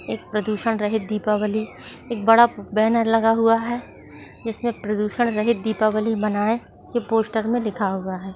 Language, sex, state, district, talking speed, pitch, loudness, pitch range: Hindi, female, Chhattisgarh, Raigarh, 160 wpm, 220 Hz, -21 LUFS, 210-230 Hz